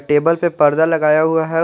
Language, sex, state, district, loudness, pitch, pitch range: Hindi, male, Jharkhand, Garhwa, -15 LUFS, 160 Hz, 150-165 Hz